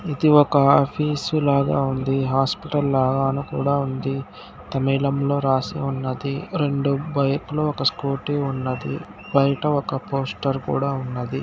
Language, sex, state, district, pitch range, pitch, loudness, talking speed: Telugu, male, Andhra Pradesh, Guntur, 135-145 Hz, 140 Hz, -22 LUFS, 120 wpm